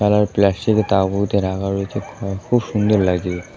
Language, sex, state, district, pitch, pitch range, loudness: Bengali, male, West Bengal, Kolkata, 100 Hz, 95-105 Hz, -19 LUFS